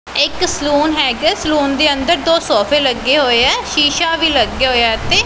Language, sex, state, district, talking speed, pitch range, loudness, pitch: Punjabi, female, Punjab, Pathankot, 215 wpm, 265-325 Hz, -13 LUFS, 295 Hz